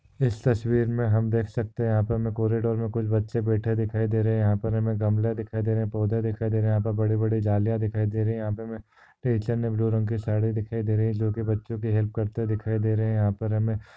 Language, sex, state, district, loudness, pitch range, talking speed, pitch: Hindi, male, Maharashtra, Solapur, -26 LUFS, 110-115 Hz, 255 wpm, 110 Hz